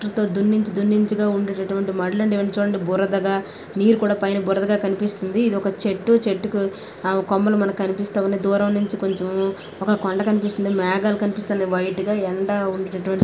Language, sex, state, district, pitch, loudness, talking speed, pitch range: Telugu, female, Telangana, Karimnagar, 200 Hz, -21 LUFS, 155 wpm, 195-205 Hz